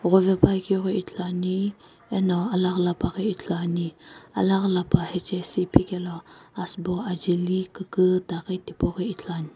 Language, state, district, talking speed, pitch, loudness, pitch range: Sumi, Nagaland, Kohima, 115 wpm, 185 Hz, -25 LUFS, 175-190 Hz